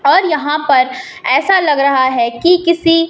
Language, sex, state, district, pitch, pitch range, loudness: Hindi, female, Madhya Pradesh, Umaria, 325 Hz, 275-355 Hz, -13 LUFS